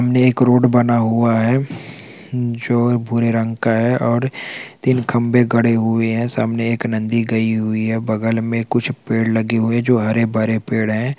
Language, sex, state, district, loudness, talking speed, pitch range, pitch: Hindi, male, Bihar, Supaul, -17 LUFS, 180 wpm, 115-125 Hz, 115 Hz